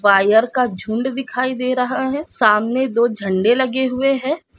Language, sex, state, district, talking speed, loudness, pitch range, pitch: Hindi, female, Bihar, East Champaran, 170 wpm, -18 LUFS, 220-260 Hz, 250 Hz